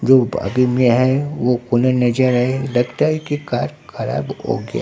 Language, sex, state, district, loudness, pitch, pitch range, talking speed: Hindi, male, Bihar, Katihar, -18 LUFS, 125 Hz, 120-135 Hz, 160 wpm